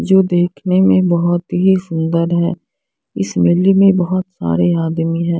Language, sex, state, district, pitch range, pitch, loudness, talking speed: Hindi, female, Punjab, Fazilka, 165-185 Hz, 170 Hz, -15 LUFS, 155 wpm